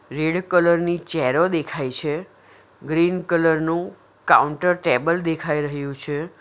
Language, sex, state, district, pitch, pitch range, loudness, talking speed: Gujarati, female, Gujarat, Valsad, 165 Hz, 150-175 Hz, -21 LUFS, 130 wpm